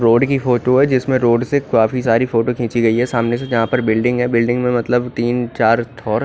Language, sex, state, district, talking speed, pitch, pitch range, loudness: Hindi, male, Odisha, Khordha, 240 wpm, 120 Hz, 115-125 Hz, -16 LUFS